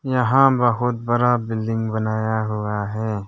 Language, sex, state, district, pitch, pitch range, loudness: Hindi, male, Arunachal Pradesh, Lower Dibang Valley, 115 Hz, 110-120 Hz, -20 LUFS